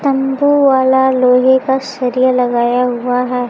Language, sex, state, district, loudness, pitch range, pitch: Hindi, female, Bihar, Kaimur, -13 LUFS, 250-265 Hz, 255 Hz